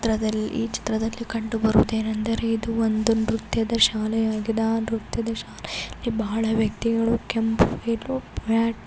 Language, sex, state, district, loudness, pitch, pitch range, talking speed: Kannada, female, Karnataka, Belgaum, -24 LUFS, 225 Hz, 220-230 Hz, 95 wpm